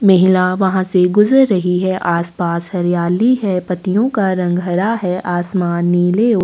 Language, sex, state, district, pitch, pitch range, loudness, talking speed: Hindi, female, Chhattisgarh, Sukma, 185 Hz, 175-195 Hz, -15 LUFS, 160 wpm